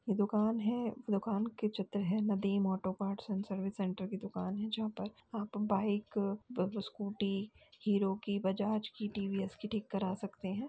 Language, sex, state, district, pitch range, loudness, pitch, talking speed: Hindi, female, Uttar Pradesh, Jalaun, 195-215 Hz, -37 LUFS, 205 Hz, 185 wpm